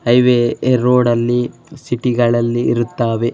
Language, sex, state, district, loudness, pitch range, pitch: Kannada, male, Karnataka, Bellary, -15 LUFS, 120-125 Hz, 120 Hz